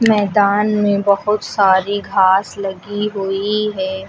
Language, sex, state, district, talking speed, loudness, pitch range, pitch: Hindi, female, Uttar Pradesh, Lucknow, 115 wpm, -16 LUFS, 195-210 Hz, 200 Hz